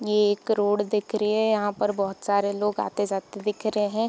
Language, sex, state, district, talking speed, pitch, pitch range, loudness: Hindi, female, Bihar, Gopalganj, 220 wpm, 210 Hz, 205-215 Hz, -25 LUFS